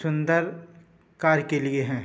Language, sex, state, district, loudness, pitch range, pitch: Hindi, male, Uttar Pradesh, Budaun, -24 LUFS, 145-170 Hz, 160 Hz